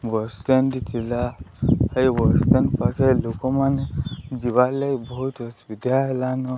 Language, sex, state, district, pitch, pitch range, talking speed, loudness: Odia, male, Odisha, Sambalpur, 130 Hz, 115-130 Hz, 130 wpm, -22 LUFS